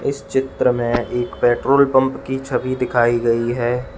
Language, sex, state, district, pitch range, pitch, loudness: Hindi, male, Uttar Pradesh, Lalitpur, 120-135 Hz, 125 Hz, -18 LUFS